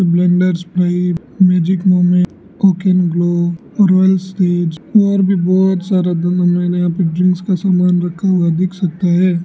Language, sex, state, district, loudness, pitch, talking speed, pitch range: Hindi, male, Arunachal Pradesh, Lower Dibang Valley, -14 LUFS, 180 Hz, 140 wpm, 175-185 Hz